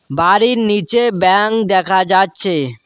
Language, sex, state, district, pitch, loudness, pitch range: Bengali, male, West Bengal, Cooch Behar, 195 Hz, -12 LUFS, 185-220 Hz